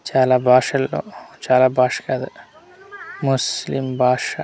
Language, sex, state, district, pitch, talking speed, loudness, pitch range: Telugu, male, Andhra Pradesh, Manyam, 130 Hz, 110 wpm, -18 LUFS, 125-135 Hz